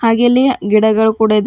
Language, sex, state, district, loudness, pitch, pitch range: Kannada, female, Karnataka, Bidar, -12 LUFS, 220 Hz, 215-240 Hz